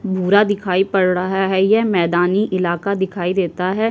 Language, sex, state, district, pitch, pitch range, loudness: Hindi, female, Uttar Pradesh, Jyotiba Phule Nagar, 190 Hz, 180-200 Hz, -17 LUFS